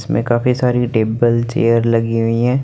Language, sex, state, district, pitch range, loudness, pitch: Hindi, male, Chandigarh, Chandigarh, 115-125 Hz, -16 LUFS, 120 Hz